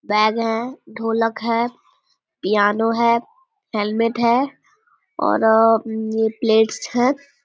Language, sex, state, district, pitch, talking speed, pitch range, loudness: Hindi, female, Bihar, Vaishali, 225 Hz, 105 wpm, 220-240 Hz, -19 LUFS